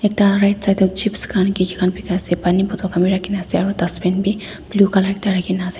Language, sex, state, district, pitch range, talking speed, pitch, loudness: Nagamese, female, Nagaland, Dimapur, 185-200 Hz, 195 wpm, 190 Hz, -18 LUFS